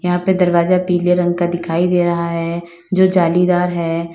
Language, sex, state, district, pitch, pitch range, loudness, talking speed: Hindi, female, Uttar Pradesh, Lalitpur, 175 Hz, 170-180 Hz, -16 LUFS, 185 wpm